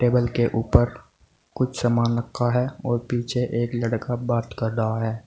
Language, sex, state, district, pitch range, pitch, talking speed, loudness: Hindi, male, Uttar Pradesh, Saharanpur, 115-120 Hz, 120 Hz, 170 wpm, -24 LUFS